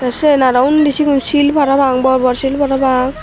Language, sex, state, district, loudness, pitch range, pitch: Chakma, female, Tripura, Dhalai, -12 LUFS, 255-290 Hz, 270 Hz